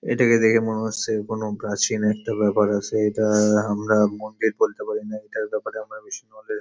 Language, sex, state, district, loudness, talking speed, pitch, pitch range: Bengali, male, West Bengal, Paschim Medinipur, -22 LUFS, 190 wpm, 110 Hz, 105-110 Hz